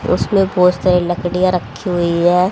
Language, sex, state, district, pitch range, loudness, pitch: Hindi, female, Haryana, Rohtak, 175-185 Hz, -15 LUFS, 180 Hz